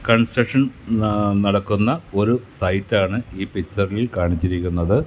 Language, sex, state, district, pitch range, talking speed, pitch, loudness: Malayalam, male, Kerala, Kasaragod, 95-115 Hz, 85 wpm, 100 Hz, -20 LUFS